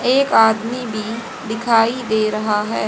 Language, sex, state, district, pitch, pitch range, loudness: Hindi, female, Haryana, Jhajjar, 225 Hz, 220-240 Hz, -18 LUFS